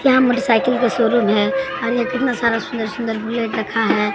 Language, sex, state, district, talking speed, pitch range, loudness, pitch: Hindi, male, Bihar, Katihar, 200 wpm, 225-250 Hz, -18 LUFS, 235 Hz